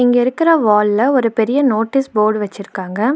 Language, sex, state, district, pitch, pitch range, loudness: Tamil, female, Tamil Nadu, Nilgiris, 225 Hz, 210-270 Hz, -15 LUFS